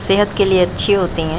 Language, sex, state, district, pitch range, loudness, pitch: Hindi, female, Uttar Pradesh, Jalaun, 175-200 Hz, -14 LUFS, 190 Hz